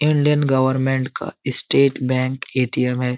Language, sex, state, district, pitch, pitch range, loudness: Hindi, male, Bihar, Jamui, 130 Hz, 130-140 Hz, -19 LUFS